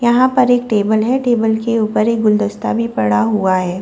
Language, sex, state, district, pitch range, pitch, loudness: Hindi, female, Delhi, New Delhi, 190-235 Hz, 220 Hz, -15 LUFS